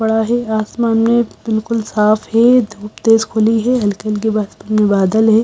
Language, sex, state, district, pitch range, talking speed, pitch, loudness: Hindi, female, Bihar, Katihar, 215-230 Hz, 185 wpm, 220 Hz, -15 LUFS